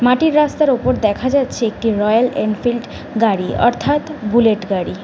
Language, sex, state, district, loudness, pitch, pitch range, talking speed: Bengali, female, West Bengal, Jhargram, -16 LUFS, 240 Hz, 215-270 Hz, 145 wpm